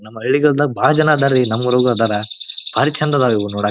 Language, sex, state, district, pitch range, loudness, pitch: Kannada, male, Karnataka, Bijapur, 110-145 Hz, -16 LUFS, 125 Hz